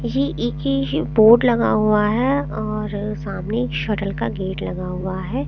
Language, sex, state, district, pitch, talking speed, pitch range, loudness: Hindi, female, Chandigarh, Chandigarh, 180 Hz, 185 wpm, 135-210 Hz, -20 LUFS